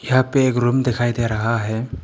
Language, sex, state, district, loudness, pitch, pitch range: Hindi, male, Arunachal Pradesh, Papum Pare, -19 LUFS, 120 Hz, 115-130 Hz